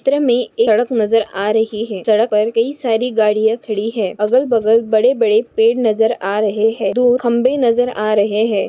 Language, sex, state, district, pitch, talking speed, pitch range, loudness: Hindi, female, Goa, North and South Goa, 225 Hz, 200 wpm, 215-245 Hz, -15 LUFS